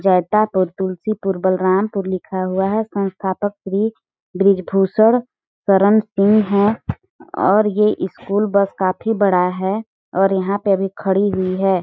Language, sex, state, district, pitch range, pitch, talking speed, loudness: Hindi, female, Chhattisgarh, Balrampur, 190-210 Hz, 195 Hz, 130 wpm, -18 LUFS